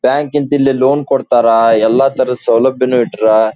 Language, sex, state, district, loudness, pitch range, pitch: Kannada, male, Karnataka, Dharwad, -12 LUFS, 115-135 Hz, 130 Hz